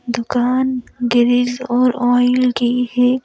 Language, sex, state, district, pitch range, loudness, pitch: Hindi, female, Madhya Pradesh, Bhopal, 245-250 Hz, -16 LUFS, 245 Hz